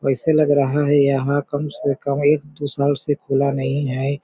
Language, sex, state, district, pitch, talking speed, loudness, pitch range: Hindi, male, Chhattisgarh, Balrampur, 145 Hz, 210 wpm, -19 LUFS, 140-145 Hz